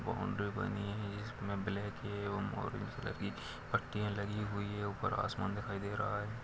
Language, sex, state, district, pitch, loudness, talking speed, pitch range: Hindi, male, Bihar, Araria, 105 Hz, -39 LUFS, 165 wpm, 100-105 Hz